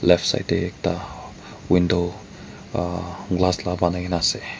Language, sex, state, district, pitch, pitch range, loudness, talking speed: Nagamese, male, Nagaland, Kohima, 90 Hz, 85-90 Hz, -23 LUFS, 155 wpm